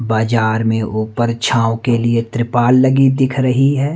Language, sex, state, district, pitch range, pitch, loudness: Hindi, male, Madhya Pradesh, Umaria, 115-130 Hz, 120 Hz, -15 LUFS